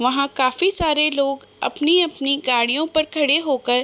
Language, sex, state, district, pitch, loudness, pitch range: Hindi, female, Uttar Pradesh, Budaun, 280 Hz, -18 LUFS, 265-315 Hz